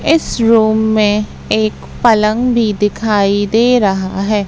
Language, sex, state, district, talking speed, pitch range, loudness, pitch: Hindi, female, Madhya Pradesh, Katni, 135 wpm, 205-230 Hz, -13 LUFS, 215 Hz